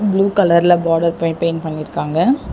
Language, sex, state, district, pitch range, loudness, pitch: Tamil, female, Tamil Nadu, Chennai, 165-195 Hz, -16 LUFS, 170 Hz